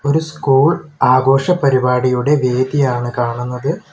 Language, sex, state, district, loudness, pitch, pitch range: Malayalam, male, Kerala, Kollam, -15 LUFS, 135 Hz, 125-145 Hz